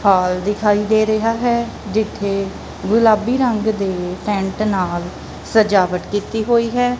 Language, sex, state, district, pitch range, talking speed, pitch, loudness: Punjabi, female, Punjab, Kapurthala, 195-225 Hz, 130 wpm, 210 Hz, -18 LUFS